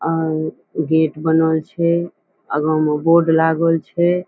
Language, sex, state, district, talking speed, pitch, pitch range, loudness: Maithili, female, Bihar, Saharsa, 125 wpm, 160 Hz, 155-165 Hz, -17 LUFS